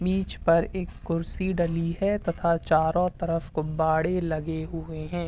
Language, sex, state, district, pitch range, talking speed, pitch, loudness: Hindi, male, Uttar Pradesh, Hamirpur, 160-180 Hz, 145 wpm, 165 Hz, -26 LUFS